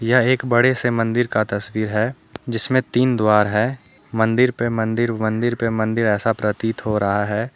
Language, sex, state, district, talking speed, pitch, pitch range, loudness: Hindi, male, Jharkhand, Deoghar, 185 wpm, 115 Hz, 110-120 Hz, -19 LUFS